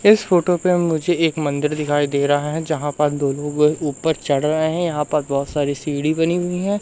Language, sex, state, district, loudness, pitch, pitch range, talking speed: Hindi, male, Madhya Pradesh, Katni, -19 LUFS, 150 Hz, 145-165 Hz, 240 wpm